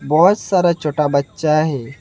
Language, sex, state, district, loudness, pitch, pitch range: Hindi, male, Assam, Hailakandi, -16 LUFS, 150 Hz, 140-170 Hz